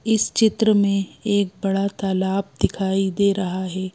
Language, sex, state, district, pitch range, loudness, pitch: Hindi, female, Madhya Pradesh, Bhopal, 190-205 Hz, -21 LUFS, 195 Hz